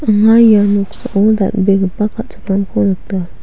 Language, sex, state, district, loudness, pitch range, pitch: Garo, female, Meghalaya, West Garo Hills, -13 LUFS, 195-215 Hz, 205 Hz